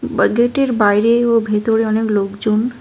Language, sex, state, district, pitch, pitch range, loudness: Bengali, female, West Bengal, Cooch Behar, 225 Hz, 210-235 Hz, -15 LUFS